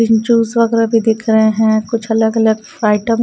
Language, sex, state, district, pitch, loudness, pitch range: Hindi, female, Haryana, Rohtak, 225 Hz, -14 LUFS, 220-230 Hz